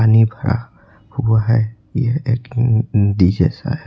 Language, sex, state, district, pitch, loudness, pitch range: Hindi, male, Uttar Pradesh, Lucknow, 110 Hz, -17 LUFS, 105-120 Hz